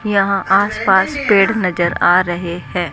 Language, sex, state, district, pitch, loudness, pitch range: Hindi, female, Rajasthan, Jaipur, 190 Hz, -15 LUFS, 175-200 Hz